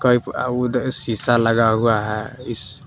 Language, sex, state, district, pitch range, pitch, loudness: Hindi, male, Jharkhand, Palamu, 110-125 Hz, 120 Hz, -20 LUFS